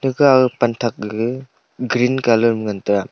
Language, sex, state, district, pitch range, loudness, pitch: Wancho, male, Arunachal Pradesh, Longding, 110-130 Hz, -17 LUFS, 120 Hz